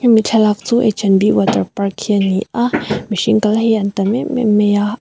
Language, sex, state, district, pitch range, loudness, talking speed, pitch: Mizo, female, Mizoram, Aizawl, 205-225 Hz, -15 LUFS, 250 wpm, 215 Hz